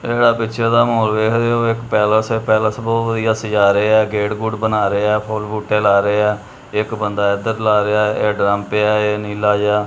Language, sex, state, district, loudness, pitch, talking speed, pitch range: Punjabi, male, Punjab, Kapurthala, -16 LUFS, 105 Hz, 245 wpm, 105-110 Hz